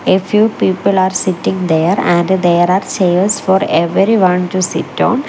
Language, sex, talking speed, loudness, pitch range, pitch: English, female, 170 wpm, -13 LUFS, 175-195 Hz, 185 Hz